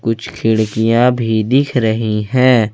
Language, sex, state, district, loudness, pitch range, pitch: Hindi, male, Jharkhand, Ranchi, -14 LUFS, 110-125 Hz, 115 Hz